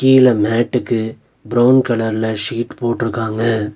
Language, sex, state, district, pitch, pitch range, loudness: Tamil, male, Tamil Nadu, Nilgiris, 115 Hz, 110-125 Hz, -16 LUFS